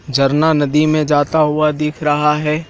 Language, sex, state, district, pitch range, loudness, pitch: Hindi, male, Madhya Pradesh, Dhar, 145-155 Hz, -15 LUFS, 150 Hz